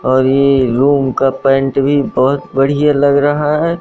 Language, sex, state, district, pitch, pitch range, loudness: Hindi, male, Madhya Pradesh, Katni, 140 Hz, 135-145 Hz, -12 LUFS